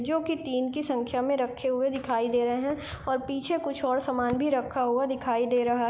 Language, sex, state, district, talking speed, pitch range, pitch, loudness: Hindi, female, Bihar, East Champaran, 245 wpm, 245-275 Hz, 260 Hz, -28 LUFS